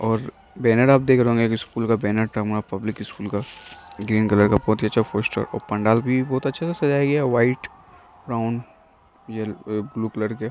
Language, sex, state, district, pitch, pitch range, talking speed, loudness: Hindi, male, Bihar, Gopalganj, 110 Hz, 110-125 Hz, 235 wpm, -22 LUFS